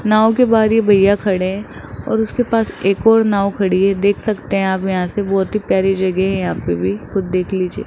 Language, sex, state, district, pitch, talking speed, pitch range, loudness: Hindi, male, Rajasthan, Jaipur, 195 Hz, 245 wpm, 190-215 Hz, -16 LUFS